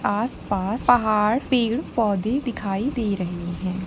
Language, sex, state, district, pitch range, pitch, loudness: Hindi, female, Jharkhand, Jamtara, 195-245 Hz, 215 Hz, -23 LUFS